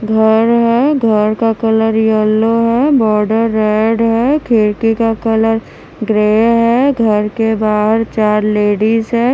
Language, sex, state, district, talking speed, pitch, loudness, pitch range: Hindi, female, Bihar, Kaimur, 135 wpm, 225 Hz, -12 LUFS, 215-230 Hz